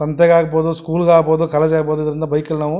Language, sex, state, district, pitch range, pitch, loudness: Kannada, male, Karnataka, Mysore, 155-165 Hz, 160 Hz, -15 LUFS